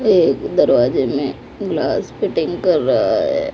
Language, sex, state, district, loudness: Hindi, female, Odisha, Malkangiri, -17 LUFS